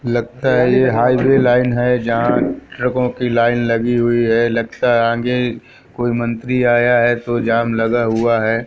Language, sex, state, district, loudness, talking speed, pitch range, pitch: Hindi, male, Madhya Pradesh, Katni, -16 LUFS, 165 wpm, 115-125 Hz, 120 Hz